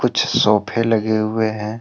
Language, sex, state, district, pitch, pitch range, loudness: Hindi, male, Jharkhand, Deoghar, 110 Hz, 110-115 Hz, -18 LUFS